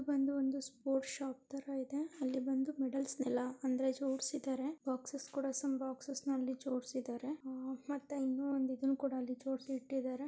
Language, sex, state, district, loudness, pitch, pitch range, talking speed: Kannada, female, Karnataka, Belgaum, -39 LUFS, 270 Hz, 260-275 Hz, 110 wpm